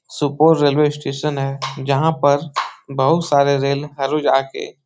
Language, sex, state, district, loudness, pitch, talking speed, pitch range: Hindi, male, Bihar, Supaul, -18 LUFS, 140 Hz, 160 wpm, 135-150 Hz